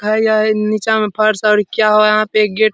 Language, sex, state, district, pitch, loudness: Hindi, male, Bihar, Supaul, 215 Hz, -13 LUFS